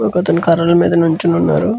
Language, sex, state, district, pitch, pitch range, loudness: Telugu, male, Andhra Pradesh, Guntur, 170 Hz, 165-170 Hz, -13 LUFS